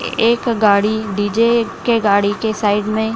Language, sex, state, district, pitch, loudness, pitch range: Hindi, female, Bihar, Samastipur, 220 Hz, -16 LUFS, 205-230 Hz